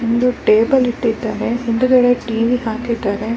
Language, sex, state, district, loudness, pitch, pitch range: Kannada, female, Karnataka, Bellary, -16 LUFS, 235 Hz, 225-245 Hz